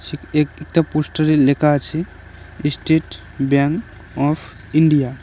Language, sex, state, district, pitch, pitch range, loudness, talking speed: Bengali, male, West Bengal, Cooch Behar, 145 Hz, 110-155 Hz, -18 LUFS, 115 wpm